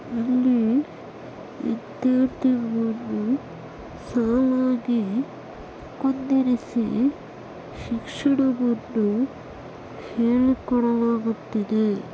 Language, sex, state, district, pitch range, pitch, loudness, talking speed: Kannada, female, Karnataka, Bellary, 230-260 Hz, 245 Hz, -23 LUFS, 40 wpm